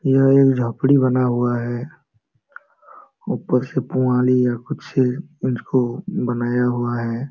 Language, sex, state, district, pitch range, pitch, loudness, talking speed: Hindi, male, Jharkhand, Sahebganj, 120-135 Hz, 125 Hz, -19 LUFS, 125 wpm